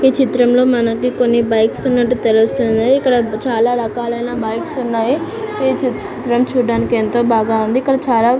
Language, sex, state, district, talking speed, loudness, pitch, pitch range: Telugu, female, Andhra Pradesh, Anantapur, 135 wpm, -15 LUFS, 240 Hz, 230-255 Hz